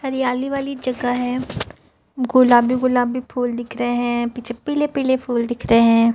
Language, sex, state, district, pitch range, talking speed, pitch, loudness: Hindi, female, Chhattisgarh, Raipur, 240-260 Hz, 165 wpm, 245 Hz, -19 LUFS